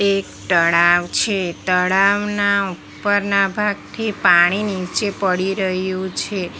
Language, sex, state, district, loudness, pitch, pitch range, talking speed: Gujarati, female, Gujarat, Valsad, -18 LUFS, 195 Hz, 180-200 Hz, 100 wpm